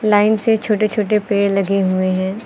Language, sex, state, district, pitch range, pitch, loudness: Hindi, female, Uttar Pradesh, Lucknow, 195-215 Hz, 205 Hz, -16 LUFS